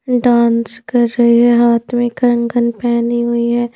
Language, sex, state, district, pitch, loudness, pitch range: Hindi, female, Madhya Pradesh, Bhopal, 235 Hz, -14 LUFS, 235-240 Hz